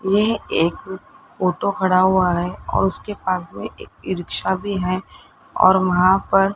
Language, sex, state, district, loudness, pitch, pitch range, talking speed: Hindi, male, Rajasthan, Jaipur, -19 LUFS, 190 Hz, 185-195 Hz, 175 wpm